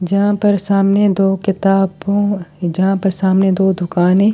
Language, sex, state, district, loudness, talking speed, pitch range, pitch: Hindi, male, Delhi, New Delhi, -15 LUFS, 150 wpm, 190-200 Hz, 195 Hz